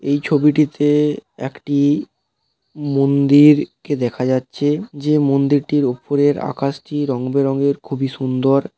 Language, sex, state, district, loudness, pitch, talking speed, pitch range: Bengali, male, West Bengal, Paschim Medinipur, -17 LUFS, 140 Hz, 95 wpm, 135-145 Hz